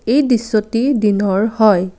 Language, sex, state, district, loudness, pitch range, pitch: Assamese, female, Assam, Kamrup Metropolitan, -15 LUFS, 205-240 Hz, 215 Hz